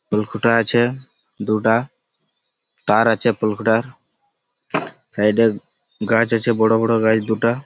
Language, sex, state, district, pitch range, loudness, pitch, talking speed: Bengali, male, West Bengal, Malda, 110-115 Hz, -18 LUFS, 115 Hz, 115 wpm